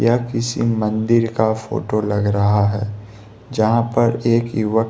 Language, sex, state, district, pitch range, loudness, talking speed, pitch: Hindi, male, Bihar, West Champaran, 105-115 Hz, -18 LUFS, 145 wpm, 110 Hz